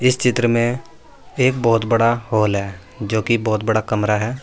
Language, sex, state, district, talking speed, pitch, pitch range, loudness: Hindi, male, Uttar Pradesh, Saharanpur, 175 wpm, 115 Hz, 110-125 Hz, -18 LUFS